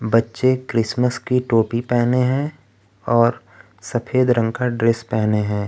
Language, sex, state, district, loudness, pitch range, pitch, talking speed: Hindi, male, Bihar, Kaimur, -19 LUFS, 115-125 Hz, 115 Hz, 135 wpm